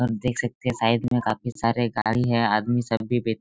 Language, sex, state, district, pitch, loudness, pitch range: Hindi, male, Chhattisgarh, Raigarh, 120 Hz, -24 LUFS, 115-120 Hz